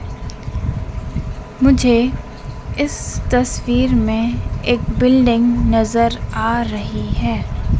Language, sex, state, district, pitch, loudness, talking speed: Hindi, female, Madhya Pradesh, Dhar, 235 Hz, -17 LUFS, 75 wpm